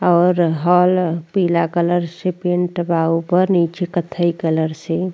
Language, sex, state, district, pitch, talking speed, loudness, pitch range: Bhojpuri, female, Uttar Pradesh, Ghazipur, 175 Hz, 140 wpm, -18 LUFS, 165-180 Hz